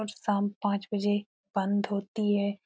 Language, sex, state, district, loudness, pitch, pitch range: Hindi, female, Bihar, Supaul, -30 LUFS, 205 Hz, 200-205 Hz